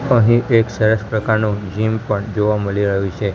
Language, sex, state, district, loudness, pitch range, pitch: Gujarati, male, Gujarat, Gandhinagar, -17 LUFS, 100-110 Hz, 110 Hz